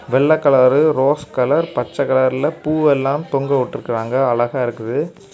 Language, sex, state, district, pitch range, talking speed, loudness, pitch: Tamil, male, Tamil Nadu, Kanyakumari, 125-150 Hz, 125 wpm, -17 LUFS, 135 Hz